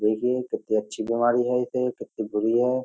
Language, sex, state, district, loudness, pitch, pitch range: Hindi, male, Uttar Pradesh, Jyotiba Phule Nagar, -25 LUFS, 120 Hz, 110-125 Hz